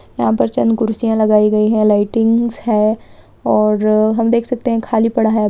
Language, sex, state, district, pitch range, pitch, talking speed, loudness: Hindi, female, Chhattisgarh, Balrampur, 215-230 Hz, 220 Hz, 165 wpm, -15 LUFS